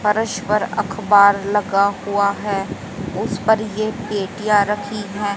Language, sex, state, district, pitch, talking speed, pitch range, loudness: Hindi, female, Haryana, Jhajjar, 205 Hz, 125 wpm, 200-210 Hz, -19 LUFS